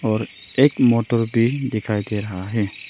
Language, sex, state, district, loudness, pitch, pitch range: Hindi, male, Arunachal Pradesh, Longding, -20 LUFS, 110 Hz, 105-120 Hz